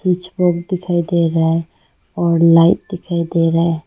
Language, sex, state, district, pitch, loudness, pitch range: Hindi, female, Arunachal Pradesh, Longding, 170 Hz, -16 LUFS, 165-180 Hz